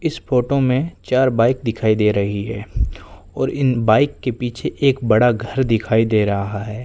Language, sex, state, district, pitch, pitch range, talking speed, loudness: Hindi, male, Rajasthan, Bikaner, 115 Hz, 105-130 Hz, 185 wpm, -18 LUFS